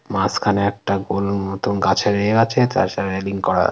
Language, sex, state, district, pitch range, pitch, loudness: Bengali, male, West Bengal, North 24 Parganas, 95-105 Hz, 100 Hz, -19 LUFS